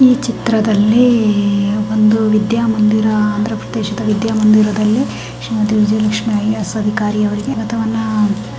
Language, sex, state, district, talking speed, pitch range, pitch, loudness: Kannada, female, Karnataka, Belgaum, 90 wpm, 210-220 Hz, 215 Hz, -14 LUFS